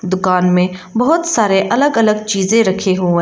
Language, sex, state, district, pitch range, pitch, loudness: Hindi, female, Arunachal Pradesh, Lower Dibang Valley, 185-225 Hz, 195 Hz, -14 LUFS